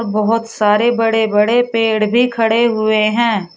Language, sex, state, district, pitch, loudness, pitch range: Hindi, female, Uttar Pradesh, Shamli, 225 Hz, -14 LUFS, 215-230 Hz